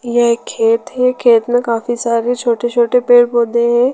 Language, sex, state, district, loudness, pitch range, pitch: Hindi, female, Chhattisgarh, Rajnandgaon, -14 LUFS, 235-245 Hz, 240 Hz